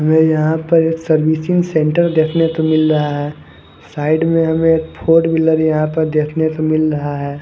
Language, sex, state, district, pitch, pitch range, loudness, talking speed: Hindi, male, Haryana, Charkhi Dadri, 160 Hz, 155-160 Hz, -15 LUFS, 195 wpm